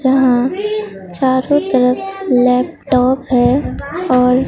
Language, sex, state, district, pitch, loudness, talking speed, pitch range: Hindi, female, Bihar, Katihar, 260 Hz, -14 LUFS, 80 wpm, 250-280 Hz